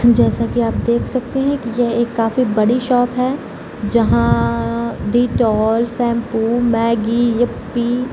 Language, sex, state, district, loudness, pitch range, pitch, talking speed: Hindi, female, Bihar, Samastipur, -17 LUFS, 215-240 Hz, 235 Hz, 140 wpm